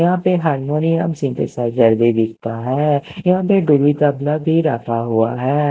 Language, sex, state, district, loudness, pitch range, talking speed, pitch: Hindi, male, Himachal Pradesh, Shimla, -17 LUFS, 120-160 Hz, 160 wpm, 145 Hz